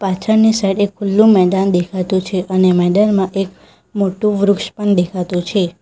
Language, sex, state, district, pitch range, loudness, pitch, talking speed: Gujarati, female, Gujarat, Valsad, 185-205 Hz, -15 LUFS, 195 Hz, 155 wpm